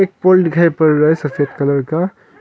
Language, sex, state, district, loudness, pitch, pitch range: Hindi, male, Arunachal Pradesh, Longding, -14 LUFS, 160 Hz, 150-180 Hz